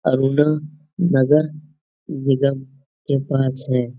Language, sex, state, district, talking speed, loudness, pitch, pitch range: Hindi, male, Uttar Pradesh, Etah, 90 wpm, -19 LUFS, 140 Hz, 135-150 Hz